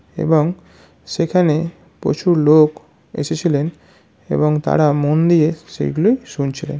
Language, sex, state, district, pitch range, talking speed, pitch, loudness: Bengali, male, West Bengal, North 24 Parganas, 150-170 Hz, 95 wpm, 155 Hz, -17 LUFS